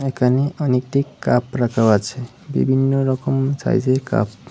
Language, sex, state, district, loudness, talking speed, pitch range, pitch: Bengali, male, Tripura, West Tripura, -19 LUFS, 135 wpm, 125-135 Hz, 130 Hz